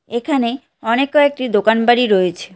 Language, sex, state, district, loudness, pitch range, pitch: Bengali, female, West Bengal, Cooch Behar, -16 LUFS, 215-270 Hz, 240 Hz